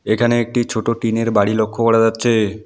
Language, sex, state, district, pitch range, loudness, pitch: Bengali, male, West Bengal, Alipurduar, 110-115 Hz, -17 LUFS, 115 Hz